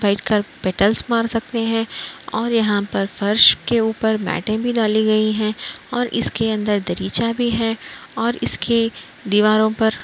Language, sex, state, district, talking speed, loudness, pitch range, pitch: Hindi, female, Uttar Pradesh, Budaun, 160 wpm, -19 LUFS, 210-230 Hz, 220 Hz